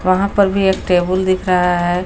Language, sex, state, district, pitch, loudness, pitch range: Hindi, female, Jharkhand, Garhwa, 185 Hz, -15 LUFS, 180-190 Hz